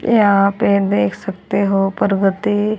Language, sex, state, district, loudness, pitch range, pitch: Hindi, female, Haryana, Charkhi Dadri, -16 LUFS, 195-210 Hz, 200 Hz